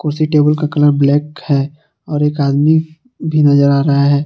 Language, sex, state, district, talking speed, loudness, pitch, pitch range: Hindi, male, Jharkhand, Palamu, 195 wpm, -13 LUFS, 150 Hz, 140-155 Hz